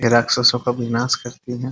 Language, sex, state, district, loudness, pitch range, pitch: Hindi, male, Bihar, Muzaffarpur, -18 LUFS, 120-125 Hz, 125 Hz